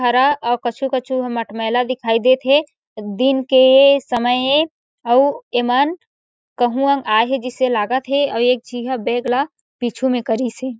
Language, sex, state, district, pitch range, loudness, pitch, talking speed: Chhattisgarhi, female, Chhattisgarh, Sarguja, 240-270 Hz, -17 LUFS, 255 Hz, 170 wpm